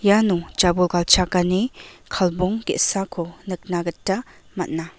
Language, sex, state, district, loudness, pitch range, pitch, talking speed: Garo, female, Meghalaya, West Garo Hills, -21 LUFS, 175-195 Hz, 185 Hz, 95 wpm